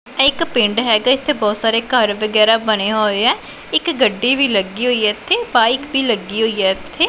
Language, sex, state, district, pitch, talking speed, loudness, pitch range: Punjabi, female, Punjab, Pathankot, 225 Hz, 185 wpm, -15 LUFS, 215-260 Hz